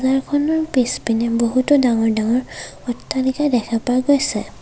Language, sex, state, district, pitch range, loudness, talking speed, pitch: Assamese, female, Assam, Kamrup Metropolitan, 235-280 Hz, -18 LUFS, 115 wpm, 255 Hz